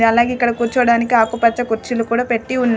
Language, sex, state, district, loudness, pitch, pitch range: Telugu, female, Telangana, Adilabad, -16 LUFS, 235 Hz, 230-245 Hz